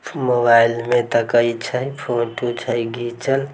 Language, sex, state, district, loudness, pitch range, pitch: Maithili, male, Bihar, Samastipur, -19 LUFS, 115-125 Hz, 120 Hz